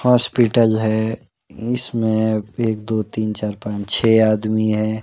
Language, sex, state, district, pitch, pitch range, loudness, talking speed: Hindi, male, Himachal Pradesh, Shimla, 110 Hz, 110-115 Hz, -19 LUFS, 130 wpm